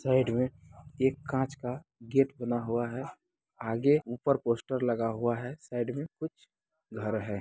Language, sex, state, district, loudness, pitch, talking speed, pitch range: Hindi, male, Bihar, Muzaffarpur, -31 LUFS, 130 Hz, 160 wpm, 120-140 Hz